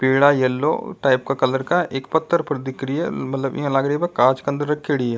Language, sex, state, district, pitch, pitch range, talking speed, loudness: Rajasthani, male, Rajasthan, Nagaur, 135 Hz, 130-150 Hz, 265 wpm, -20 LUFS